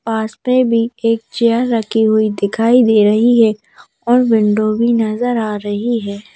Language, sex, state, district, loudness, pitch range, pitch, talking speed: Hindi, female, Madhya Pradesh, Bhopal, -14 LUFS, 215-235 Hz, 225 Hz, 170 wpm